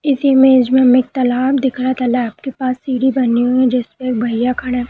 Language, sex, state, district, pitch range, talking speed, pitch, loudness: Hindi, female, Uttar Pradesh, Budaun, 245-265 Hz, 270 wpm, 255 Hz, -15 LUFS